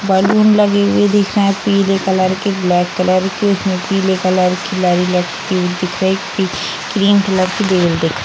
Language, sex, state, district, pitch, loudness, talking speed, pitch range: Hindi, female, Bihar, Vaishali, 190 Hz, -14 LUFS, 195 wpm, 185-200 Hz